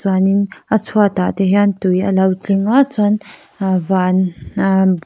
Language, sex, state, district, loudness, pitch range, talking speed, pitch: Mizo, female, Mizoram, Aizawl, -15 LUFS, 185-205 Hz, 165 wpm, 195 Hz